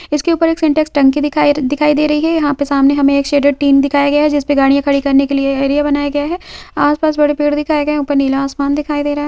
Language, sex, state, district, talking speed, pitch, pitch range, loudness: Hindi, female, Jharkhand, Jamtara, 285 wpm, 290 Hz, 280-300 Hz, -13 LUFS